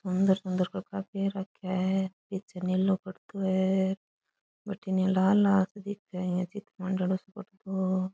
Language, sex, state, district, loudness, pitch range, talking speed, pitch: Rajasthani, female, Rajasthan, Churu, -30 LUFS, 185-195 Hz, 155 wpm, 190 Hz